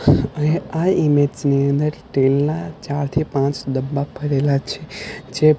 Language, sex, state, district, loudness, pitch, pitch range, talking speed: Gujarati, male, Gujarat, Gandhinagar, -19 LUFS, 145 Hz, 140-150 Hz, 120 wpm